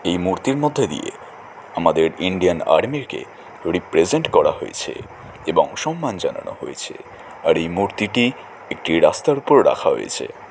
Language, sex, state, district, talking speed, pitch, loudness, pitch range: Bengali, male, West Bengal, Jalpaiguri, 110 wpm, 100 Hz, -19 LUFS, 90-135 Hz